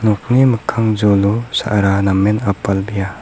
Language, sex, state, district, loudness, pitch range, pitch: Garo, male, Meghalaya, South Garo Hills, -15 LUFS, 100-110 Hz, 105 Hz